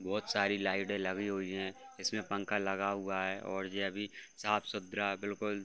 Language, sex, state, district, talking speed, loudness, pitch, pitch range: Hindi, male, Uttar Pradesh, Varanasi, 180 wpm, -36 LUFS, 100 Hz, 95-105 Hz